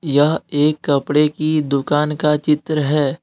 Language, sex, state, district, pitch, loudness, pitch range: Hindi, male, Jharkhand, Deoghar, 150 Hz, -17 LUFS, 145-150 Hz